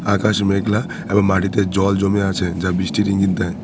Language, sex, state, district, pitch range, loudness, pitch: Bengali, male, West Bengal, Cooch Behar, 95-100 Hz, -18 LUFS, 100 Hz